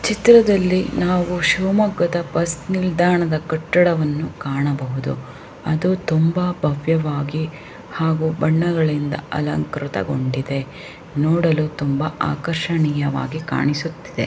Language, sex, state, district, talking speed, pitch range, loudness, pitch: Kannada, female, Karnataka, Shimoga, 70 wpm, 145-175 Hz, -19 LUFS, 160 Hz